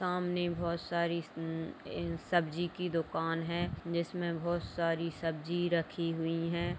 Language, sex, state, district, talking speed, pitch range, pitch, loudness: Hindi, female, Bihar, Purnia, 125 wpm, 165-175 Hz, 170 Hz, -35 LUFS